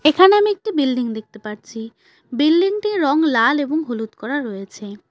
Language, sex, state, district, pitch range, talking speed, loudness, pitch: Bengali, female, West Bengal, Cooch Behar, 220-320 Hz, 165 wpm, -18 LUFS, 280 Hz